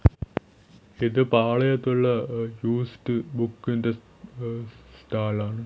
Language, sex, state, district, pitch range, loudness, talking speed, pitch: Malayalam, male, Kerala, Thiruvananthapuram, 115-120 Hz, -26 LUFS, 85 wpm, 115 Hz